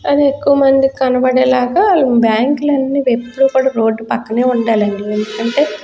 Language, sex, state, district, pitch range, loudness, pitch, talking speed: Telugu, female, Andhra Pradesh, Guntur, 230-275 Hz, -13 LUFS, 255 Hz, 165 wpm